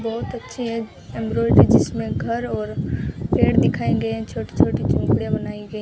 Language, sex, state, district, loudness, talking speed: Hindi, female, Rajasthan, Bikaner, -21 LUFS, 155 wpm